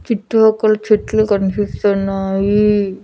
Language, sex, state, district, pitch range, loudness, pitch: Telugu, female, Andhra Pradesh, Annamaya, 195-215 Hz, -15 LUFS, 205 Hz